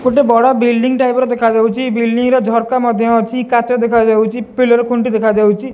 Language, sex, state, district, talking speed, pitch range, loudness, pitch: Odia, male, Odisha, Khordha, 165 wpm, 230-250 Hz, -13 LUFS, 235 Hz